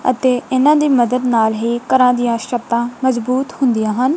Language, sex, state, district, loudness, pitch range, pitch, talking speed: Punjabi, female, Punjab, Kapurthala, -15 LUFS, 235-260 Hz, 250 Hz, 170 wpm